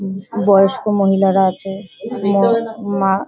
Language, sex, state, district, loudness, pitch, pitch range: Bengali, female, West Bengal, Paschim Medinipur, -16 LUFS, 195 Hz, 195-205 Hz